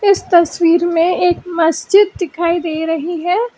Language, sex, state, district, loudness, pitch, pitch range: Hindi, female, Karnataka, Bangalore, -14 LUFS, 345 Hz, 330-360 Hz